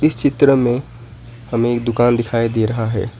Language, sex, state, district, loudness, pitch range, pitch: Hindi, male, West Bengal, Alipurduar, -17 LUFS, 115-120 Hz, 120 Hz